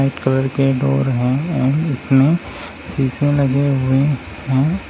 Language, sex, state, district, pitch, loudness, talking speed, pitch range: Hindi, male, Uttar Pradesh, Shamli, 135 Hz, -17 LUFS, 120 wpm, 130-140 Hz